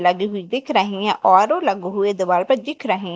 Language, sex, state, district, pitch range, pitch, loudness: Hindi, female, Madhya Pradesh, Dhar, 185-250 Hz, 200 Hz, -19 LUFS